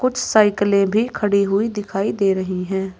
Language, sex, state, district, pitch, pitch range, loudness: Hindi, female, Uttar Pradesh, Saharanpur, 200 Hz, 195-215 Hz, -19 LUFS